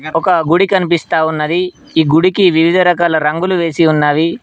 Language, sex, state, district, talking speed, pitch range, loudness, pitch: Telugu, male, Telangana, Mahabubabad, 150 wpm, 160-180 Hz, -12 LUFS, 170 Hz